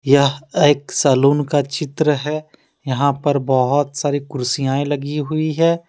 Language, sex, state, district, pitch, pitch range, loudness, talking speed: Hindi, male, Jharkhand, Deoghar, 145 Hz, 140-150 Hz, -18 LUFS, 145 wpm